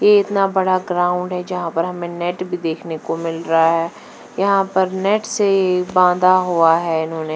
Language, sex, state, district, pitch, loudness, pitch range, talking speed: Hindi, female, Punjab, Fazilka, 180 Hz, -18 LUFS, 165-190 Hz, 195 wpm